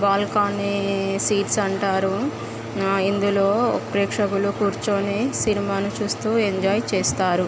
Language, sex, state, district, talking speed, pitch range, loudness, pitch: Telugu, female, Andhra Pradesh, Guntur, 70 wpm, 195-205 Hz, -22 LUFS, 200 Hz